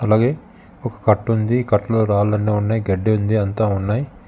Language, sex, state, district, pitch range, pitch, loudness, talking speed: Telugu, male, Telangana, Hyderabad, 105-115 Hz, 110 Hz, -19 LUFS, 155 wpm